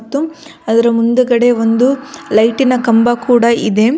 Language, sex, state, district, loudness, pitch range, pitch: Kannada, female, Karnataka, Belgaum, -12 LUFS, 230-260 Hz, 240 Hz